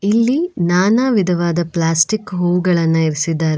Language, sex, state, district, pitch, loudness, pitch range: Kannada, female, Karnataka, Bangalore, 175 Hz, -16 LUFS, 165-210 Hz